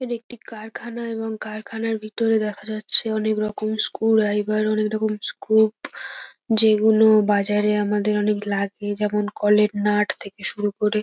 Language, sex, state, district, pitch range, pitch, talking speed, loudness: Bengali, female, West Bengal, North 24 Parganas, 210-220 Hz, 215 Hz, 145 wpm, -21 LUFS